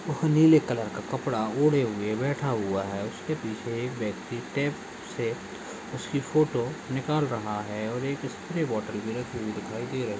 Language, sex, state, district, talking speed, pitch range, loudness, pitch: Hindi, male, Goa, North and South Goa, 175 wpm, 110-145 Hz, -28 LUFS, 125 Hz